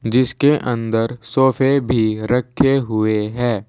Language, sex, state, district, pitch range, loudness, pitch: Hindi, male, Uttar Pradesh, Saharanpur, 115-130 Hz, -17 LUFS, 120 Hz